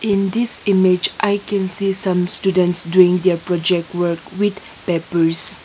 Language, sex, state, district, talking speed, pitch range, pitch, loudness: English, female, Nagaland, Kohima, 140 wpm, 175-200 Hz, 185 Hz, -16 LUFS